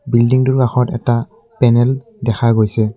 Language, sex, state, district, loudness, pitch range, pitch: Assamese, male, Assam, Kamrup Metropolitan, -15 LUFS, 115-130 Hz, 120 Hz